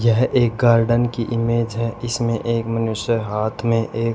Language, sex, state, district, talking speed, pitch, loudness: Hindi, male, Haryana, Charkhi Dadri, 175 wpm, 115 Hz, -20 LUFS